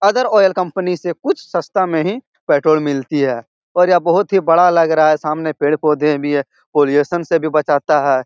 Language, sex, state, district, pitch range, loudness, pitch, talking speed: Hindi, male, Bihar, Jahanabad, 150-180 Hz, -15 LUFS, 160 Hz, 205 wpm